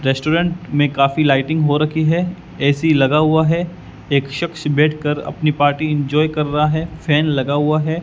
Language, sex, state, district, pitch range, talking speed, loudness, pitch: Hindi, male, Rajasthan, Bikaner, 145-160 Hz, 180 wpm, -17 LUFS, 150 Hz